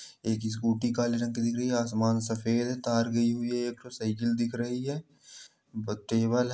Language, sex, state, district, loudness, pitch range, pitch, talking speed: Hindi, male, Bihar, Samastipur, -30 LUFS, 115-120 Hz, 120 Hz, 220 wpm